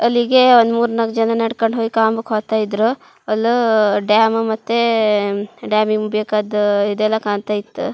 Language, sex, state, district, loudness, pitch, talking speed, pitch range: Kannada, female, Karnataka, Shimoga, -16 LUFS, 220 Hz, 120 wpm, 210-230 Hz